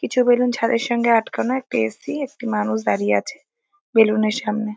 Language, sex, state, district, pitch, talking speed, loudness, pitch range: Bengali, female, West Bengal, North 24 Parganas, 230 Hz, 190 wpm, -20 LUFS, 210-250 Hz